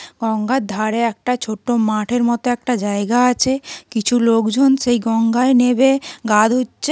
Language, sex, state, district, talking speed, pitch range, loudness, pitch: Bengali, female, West Bengal, North 24 Parganas, 140 wpm, 225-250 Hz, -17 LUFS, 240 Hz